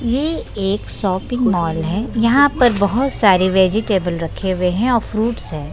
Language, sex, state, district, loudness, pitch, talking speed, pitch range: Hindi, male, Bihar, Begusarai, -17 LUFS, 205 Hz, 165 wpm, 185-240 Hz